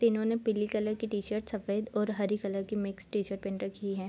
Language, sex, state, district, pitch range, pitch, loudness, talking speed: Hindi, female, Bihar, Sitamarhi, 200-215 Hz, 210 Hz, -33 LUFS, 235 wpm